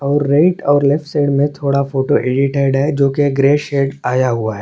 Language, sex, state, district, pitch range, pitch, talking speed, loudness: Hindi, male, Chhattisgarh, Korba, 135-145 Hz, 140 Hz, 220 wpm, -15 LUFS